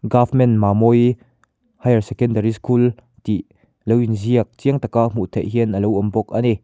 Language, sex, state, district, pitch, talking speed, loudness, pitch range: Mizo, male, Mizoram, Aizawl, 115 Hz, 170 wpm, -18 LUFS, 110-120 Hz